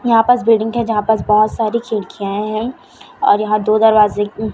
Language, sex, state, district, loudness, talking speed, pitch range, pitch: Hindi, female, Chhattisgarh, Raipur, -15 LUFS, 185 wpm, 215-230 Hz, 220 Hz